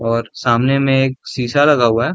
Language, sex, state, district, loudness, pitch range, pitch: Hindi, male, Bihar, Darbhanga, -15 LUFS, 115-135 Hz, 130 Hz